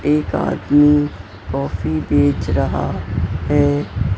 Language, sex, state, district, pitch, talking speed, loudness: Hindi, female, Maharashtra, Mumbai Suburban, 95 Hz, 85 wpm, -18 LUFS